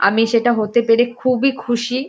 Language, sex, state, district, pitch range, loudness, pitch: Bengali, female, West Bengal, North 24 Parganas, 230-255 Hz, -17 LUFS, 235 Hz